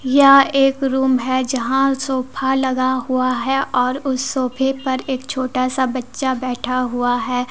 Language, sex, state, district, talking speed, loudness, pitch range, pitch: Hindi, female, Jharkhand, Deoghar, 160 wpm, -18 LUFS, 255-270 Hz, 260 Hz